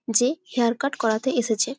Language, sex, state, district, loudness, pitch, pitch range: Bengali, female, West Bengal, Jalpaiguri, -23 LUFS, 245 Hz, 230-265 Hz